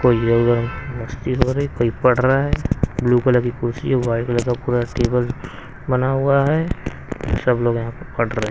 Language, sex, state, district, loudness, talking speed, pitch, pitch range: Hindi, male, Haryana, Rohtak, -19 LUFS, 190 wpm, 125 Hz, 120-130 Hz